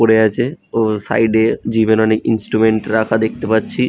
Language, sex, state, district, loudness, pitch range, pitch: Bengali, male, West Bengal, Jhargram, -15 LUFS, 110-115 Hz, 110 Hz